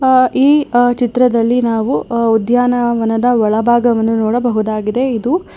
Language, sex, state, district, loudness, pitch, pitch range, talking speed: Kannada, female, Karnataka, Bangalore, -13 LUFS, 240 Hz, 225-245 Hz, 85 wpm